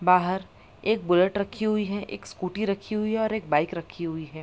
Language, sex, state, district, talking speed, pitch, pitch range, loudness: Hindi, female, Bihar, Madhepura, 230 wpm, 195 Hz, 175-215 Hz, -26 LUFS